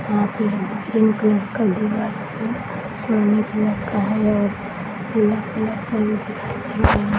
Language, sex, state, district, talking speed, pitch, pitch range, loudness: Hindi, female, Bihar, Samastipur, 165 wpm, 210 Hz, 205-215 Hz, -21 LUFS